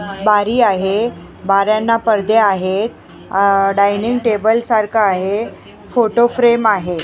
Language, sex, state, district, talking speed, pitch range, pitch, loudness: Marathi, female, Maharashtra, Mumbai Suburban, 110 wpm, 195-230 Hz, 210 Hz, -15 LUFS